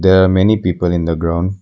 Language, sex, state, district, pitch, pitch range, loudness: English, male, Arunachal Pradesh, Lower Dibang Valley, 90 Hz, 85-95 Hz, -14 LUFS